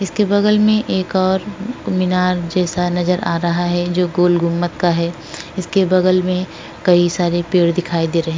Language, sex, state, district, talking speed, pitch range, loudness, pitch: Hindi, female, Uttar Pradesh, Etah, 180 wpm, 170-185 Hz, -17 LUFS, 180 Hz